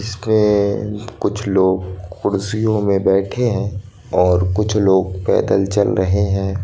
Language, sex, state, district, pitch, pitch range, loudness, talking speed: Hindi, male, Madhya Pradesh, Bhopal, 100 Hz, 95-105 Hz, -17 LUFS, 125 wpm